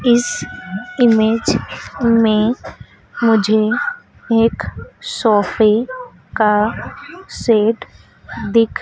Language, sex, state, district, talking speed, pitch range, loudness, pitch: Hindi, female, Madhya Pradesh, Dhar, 60 wpm, 215-245 Hz, -16 LUFS, 230 Hz